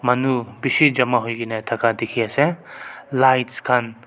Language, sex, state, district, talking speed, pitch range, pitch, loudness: Nagamese, male, Nagaland, Kohima, 160 wpm, 115-130 Hz, 125 Hz, -19 LUFS